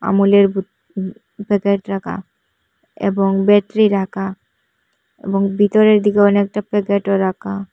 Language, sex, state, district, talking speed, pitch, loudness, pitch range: Bengali, female, Assam, Hailakandi, 110 wpm, 200 Hz, -16 LUFS, 195-205 Hz